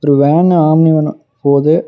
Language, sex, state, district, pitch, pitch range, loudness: Tamil, male, Tamil Nadu, Namakkal, 155 Hz, 140-160 Hz, -11 LUFS